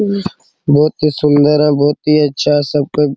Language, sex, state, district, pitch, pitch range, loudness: Hindi, male, Bihar, Araria, 150 Hz, 145-150 Hz, -13 LUFS